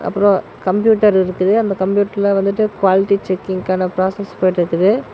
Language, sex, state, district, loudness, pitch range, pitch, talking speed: Tamil, male, Tamil Nadu, Namakkal, -16 LUFS, 185-205 Hz, 195 Hz, 115 wpm